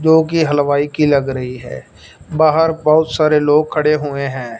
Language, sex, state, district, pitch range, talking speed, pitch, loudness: Hindi, male, Punjab, Fazilka, 140-155 Hz, 170 wpm, 150 Hz, -15 LUFS